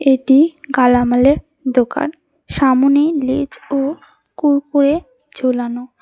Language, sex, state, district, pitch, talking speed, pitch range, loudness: Bengali, female, West Bengal, Cooch Behar, 280 Hz, 80 wpm, 255-305 Hz, -15 LUFS